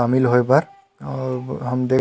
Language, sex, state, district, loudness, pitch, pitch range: Chhattisgarhi, male, Chhattisgarh, Rajnandgaon, -20 LUFS, 130 Hz, 125-135 Hz